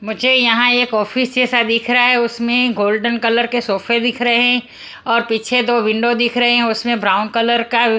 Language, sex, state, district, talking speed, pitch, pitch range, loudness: Hindi, female, Punjab, Kapurthala, 195 wpm, 235 Hz, 230-245 Hz, -15 LUFS